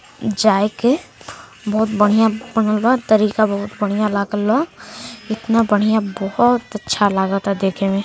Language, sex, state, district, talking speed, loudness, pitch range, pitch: Bhojpuri, female, Uttar Pradesh, Gorakhpur, 140 wpm, -17 LUFS, 205-225 Hz, 215 Hz